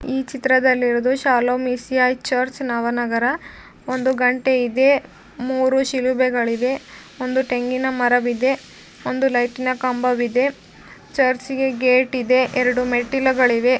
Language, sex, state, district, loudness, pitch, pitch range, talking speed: Kannada, female, Karnataka, Dharwad, -19 LUFS, 255 Hz, 250-260 Hz, 115 wpm